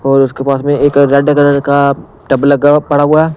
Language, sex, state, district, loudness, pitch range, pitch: Hindi, male, Punjab, Pathankot, -10 LUFS, 140-145 Hz, 140 Hz